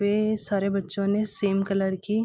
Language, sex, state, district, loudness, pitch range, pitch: Hindi, female, Uttarakhand, Uttarkashi, -25 LUFS, 195-210 Hz, 200 Hz